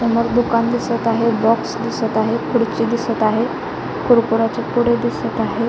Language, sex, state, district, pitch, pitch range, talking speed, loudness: Marathi, female, Maharashtra, Chandrapur, 235 Hz, 230-240 Hz, 150 wpm, -18 LUFS